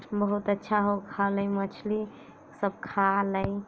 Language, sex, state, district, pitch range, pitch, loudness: Bajjika, female, Bihar, Vaishali, 200-210 Hz, 205 Hz, -28 LUFS